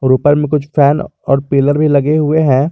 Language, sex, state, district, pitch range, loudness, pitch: Hindi, male, Jharkhand, Garhwa, 135-150 Hz, -12 LUFS, 145 Hz